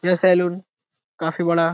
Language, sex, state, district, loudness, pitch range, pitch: Hindi, male, Bihar, Jahanabad, -20 LUFS, 165-180 Hz, 175 Hz